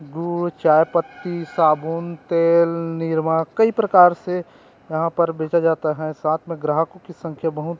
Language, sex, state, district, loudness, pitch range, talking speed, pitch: Chhattisgarhi, male, Chhattisgarh, Rajnandgaon, -20 LUFS, 160-170 Hz, 145 wpm, 165 Hz